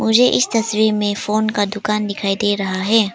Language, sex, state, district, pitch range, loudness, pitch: Hindi, female, Arunachal Pradesh, Papum Pare, 205-220 Hz, -17 LUFS, 210 Hz